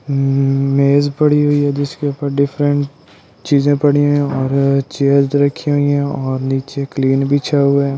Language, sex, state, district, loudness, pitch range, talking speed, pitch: Hindi, male, Delhi, New Delhi, -15 LUFS, 140-145 Hz, 165 wpm, 140 Hz